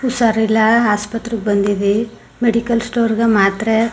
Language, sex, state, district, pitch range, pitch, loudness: Kannada, female, Karnataka, Mysore, 210-230 Hz, 225 Hz, -16 LUFS